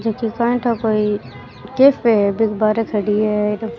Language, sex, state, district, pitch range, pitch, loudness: Rajasthani, female, Rajasthan, Churu, 210-230 Hz, 220 Hz, -17 LUFS